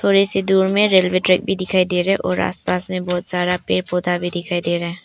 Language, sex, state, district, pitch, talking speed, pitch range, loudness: Hindi, female, Arunachal Pradesh, Papum Pare, 180 Hz, 275 wpm, 175-190 Hz, -18 LUFS